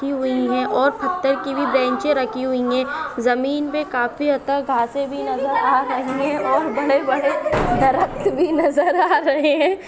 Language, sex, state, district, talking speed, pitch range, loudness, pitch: Hindi, female, Maharashtra, Nagpur, 180 wpm, 260-295 Hz, -19 LUFS, 275 Hz